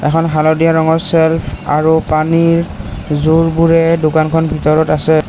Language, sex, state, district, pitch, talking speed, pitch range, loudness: Assamese, male, Assam, Kamrup Metropolitan, 160 Hz, 115 wpm, 155-165 Hz, -12 LUFS